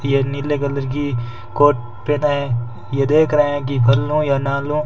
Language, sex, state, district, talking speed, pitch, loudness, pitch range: Hindi, male, Rajasthan, Bikaner, 185 wpm, 140 Hz, -18 LUFS, 130-145 Hz